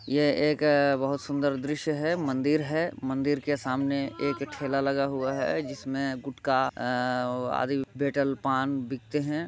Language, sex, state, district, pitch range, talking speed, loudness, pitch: Hindi, male, Bihar, Muzaffarpur, 135-145 Hz, 160 wpm, -28 LUFS, 140 Hz